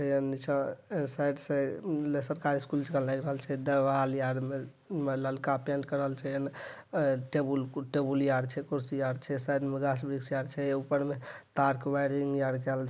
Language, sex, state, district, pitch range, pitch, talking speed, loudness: Maithili, male, Bihar, Madhepura, 135-140 Hz, 140 Hz, 165 wpm, -32 LUFS